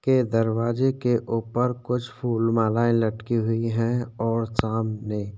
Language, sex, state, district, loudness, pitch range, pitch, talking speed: Hindi, male, Uttarakhand, Tehri Garhwal, -24 LUFS, 115-120 Hz, 115 Hz, 135 wpm